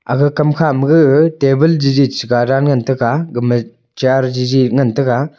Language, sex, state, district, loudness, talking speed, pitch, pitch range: Wancho, male, Arunachal Pradesh, Longding, -13 LUFS, 190 wpm, 135 Hz, 125-145 Hz